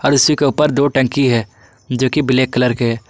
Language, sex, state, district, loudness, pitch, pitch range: Hindi, male, Jharkhand, Garhwa, -15 LUFS, 130 Hz, 120-140 Hz